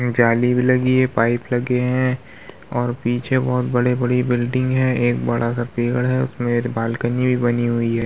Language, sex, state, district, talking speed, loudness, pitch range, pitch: Hindi, male, Bihar, Vaishali, 185 wpm, -19 LUFS, 120-125 Hz, 120 Hz